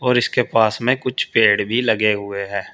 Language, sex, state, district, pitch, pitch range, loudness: Hindi, male, Uttar Pradesh, Saharanpur, 110 Hz, 105-125 Hz, -18 LUFS